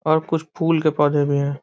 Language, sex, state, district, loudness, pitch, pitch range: Hindi, male, Bihar, Muzaffarpur, -20 LUFS, 155 Hz, 145-160 Hz